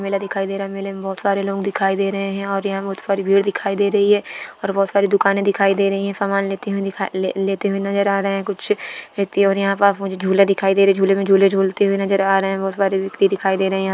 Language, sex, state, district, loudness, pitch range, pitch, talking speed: Hindi, female, West Bengal, Paschim Medinipur, -18 LUFS, 195-200 Hz, 195 Hz, 290 wpm